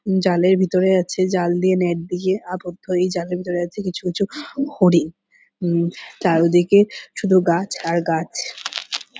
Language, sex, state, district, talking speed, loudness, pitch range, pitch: Bengali, female, West Bengal, Purulia, 135 wpm, -20 LUFS, 175-190 Hz, 180 Hz